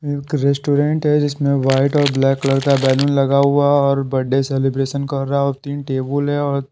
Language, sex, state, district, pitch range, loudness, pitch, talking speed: Hindi, male, Bihar, Patna, 135-145 Hz, -17 LUFS, 140 Hz, 205 wpm